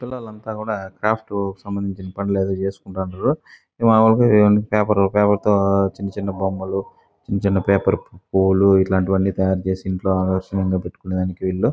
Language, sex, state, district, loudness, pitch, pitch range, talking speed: Telugu, male, Andhra Pradesh, Chittoor, -20 LUFS, 95 Hz, 95-105 Hz, 140 wpm